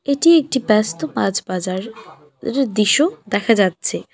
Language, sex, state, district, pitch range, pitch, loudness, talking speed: Bengali, female, West Bengal, Alipurduar, 185-265 Hz, 215 Hz, -17 LUFS, 130 wpm